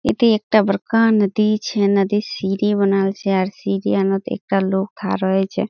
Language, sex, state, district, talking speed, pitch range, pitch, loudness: Hindi, female, Bihar, Kishanganj, 85 wpm, 195-215 Hz, 200 Hz, -18 LUFS